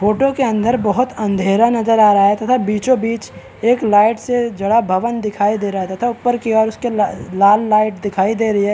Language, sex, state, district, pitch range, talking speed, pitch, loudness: Hindi, male, Bihar, Araria, 205-235 Hz, 215 wpm, 220 Hz, -15 LUFS